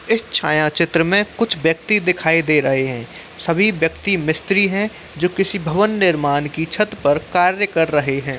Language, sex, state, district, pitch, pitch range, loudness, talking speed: Hindi, male, Uttar Pradesh, Muzaffarnagar, 170 Hz, 155-200 Hz, -17 LUFS, 170 wpm